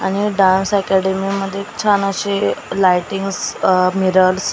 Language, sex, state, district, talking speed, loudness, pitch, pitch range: Marathi, female, Maharashtra, Gondia, 120 wpm, -16 LUFS, 195 Hz, 185-200 Hz